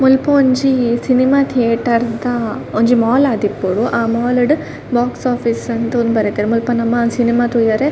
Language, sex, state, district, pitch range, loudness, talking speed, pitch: Tulu, female, Karnataka, Dakshina Kannada, 230-255 Hz, -15 LUFS, 160 wpm, 240 Hz